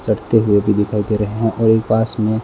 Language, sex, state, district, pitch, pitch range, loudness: Hindi, male, Rajasthan, Bikaner, 110 Hz, 105-110 Hz, -16 LUFS